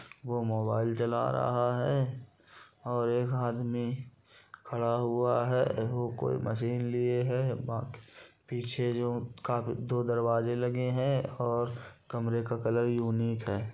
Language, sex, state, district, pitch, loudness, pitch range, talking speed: Hindi, male, Bihar, Gopalganj, 120 Hz, -31 LUFS, 115-125 Hz, 130 wpm